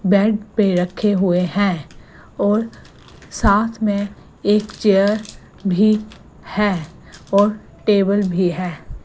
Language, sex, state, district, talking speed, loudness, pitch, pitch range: Hindi, female, Gujarat, Gandhinagar, 105 wpm, -18 LUFS, 200 Hz, 185-210 Hz